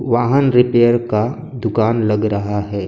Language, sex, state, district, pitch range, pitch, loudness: Hindi, male, Maharashtra, Gondia, 105-120 Hz, 115 Hz, -16 LUFS